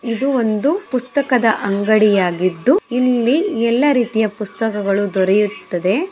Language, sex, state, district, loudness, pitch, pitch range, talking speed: Kannada, female, Karnataka, Mysore, -17 LUFS, 225 Hz, 200-255 Hz, 80 wpm